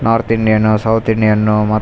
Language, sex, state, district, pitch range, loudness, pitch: Kannada, male, Karnataka, Raichur, 110-115 Hz, -13 LUFS, 110 Hz